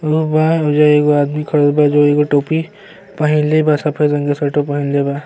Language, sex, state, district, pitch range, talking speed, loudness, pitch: Bhojpuri, male, Uttar Pradesh, Gorakhpur, 145-155 Hz, 215 wpm, -14 LUFS, 150 Hz